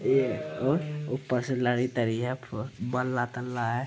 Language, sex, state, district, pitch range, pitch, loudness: Hindi, male, Bihar, Araria, 120-130 Hz, 125 Hz, -29 LUFS